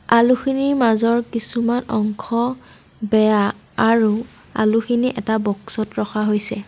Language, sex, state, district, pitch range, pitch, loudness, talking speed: Assamese, female, Assam, Sonitpur, 215-235 Hz, 225 Hz, -19 LUFS, 100 wpm